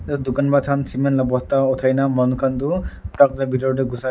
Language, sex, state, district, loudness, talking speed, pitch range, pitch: Nagamese, male, Nagaland, Dimapur, -19 LUFS, 205 wpm, 130-140 Hz, 135 Hz